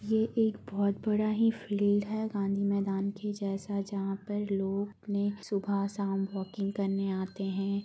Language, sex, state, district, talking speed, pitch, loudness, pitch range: Hindi, female, Bihar, Gaya, 155 wpm, 200 Hz, -32 LUFS, 195-205 Hz